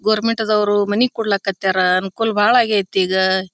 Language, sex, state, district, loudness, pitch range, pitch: Kannada, female, Karnataka, Bijapur, -17 LUFS, 190-220 Hz, 205 Hz